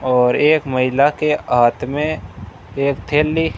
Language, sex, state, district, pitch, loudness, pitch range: Hindi, male, Rajasthan, Bikaner, 140 Hz, -17 LUFS, 125-150 Hz